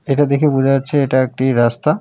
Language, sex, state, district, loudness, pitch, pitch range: Bengali, male, West Bengal, Alipurduar, -15 LUFS, 135 Hz, 130-145 Hz